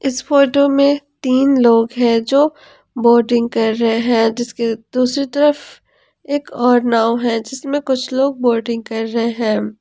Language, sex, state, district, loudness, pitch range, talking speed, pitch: Hindi, female, Jharkhand, Ranchi, -16 LUFS, 230-280 Hz, 155 wpm, 245 Hz